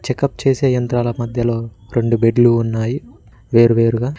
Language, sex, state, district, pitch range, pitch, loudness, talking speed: Telugu, male, Telangana, Mahabubabad, 115-125 Hz, 120 Hz, -16 LUFS, 115 wpm